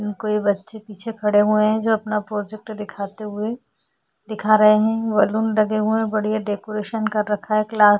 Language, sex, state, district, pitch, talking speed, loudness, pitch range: Hindi, female, Goa, North and South Goa, 215 Hz, 185 wpm, -20 LUFS, 210-220 Hz